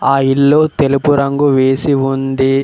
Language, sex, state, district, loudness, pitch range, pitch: Telugu, male, Telangana, Mahabubabad, -13 LUFS, 135-145 Hz, 140 Hz